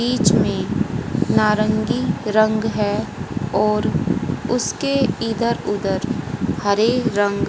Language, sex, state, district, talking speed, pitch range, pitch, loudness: Hindi, female, Haryana, Charkhi Dadri, 90 wpm, 205-230 Hz, 215 Hz, -20 LUFS